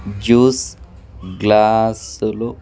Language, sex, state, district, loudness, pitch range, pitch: Telugu, male, Andhra Pradesh, Sri Satya Sai, -15 LUFS, 90-110 Hz, 105 Hz